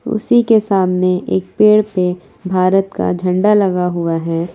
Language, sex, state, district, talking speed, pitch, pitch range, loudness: Hindi, female, Jharkhand, Palamu, 160 wpm, 185 Hz, 180-210 Hz, -14 LUFS